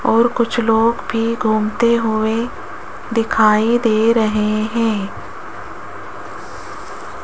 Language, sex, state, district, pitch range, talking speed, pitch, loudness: Hindi, female, Rajasthan, Jaipur, 215-230 Hz, 85 wpm, 225 Hz, -17 LUFS